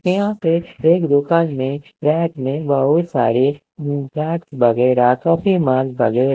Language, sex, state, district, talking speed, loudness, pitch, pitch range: Hindi, male, Himachal Pradesh, Shimla, 125 wpm, -17 LUFS, 145 Hz, 130-165 Hz